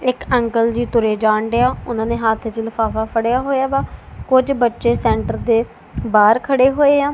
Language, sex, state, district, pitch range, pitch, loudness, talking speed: Punjabi, female, Punjab, Kapurthala, 225-260 Hz, 235 Hz, -17 LUFS, 195 wpm